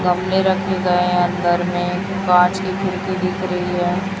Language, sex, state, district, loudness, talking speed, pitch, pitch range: Hindi, female, Chhattisgarh, Raipur, -18 LUFS, 170 wpm, 185 Hz, 180-190 Hz